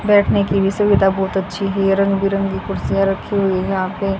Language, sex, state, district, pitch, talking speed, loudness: Hindi, female, Haryana, Jhajjar, 195 Hz, 200 wpm, -17 LUFS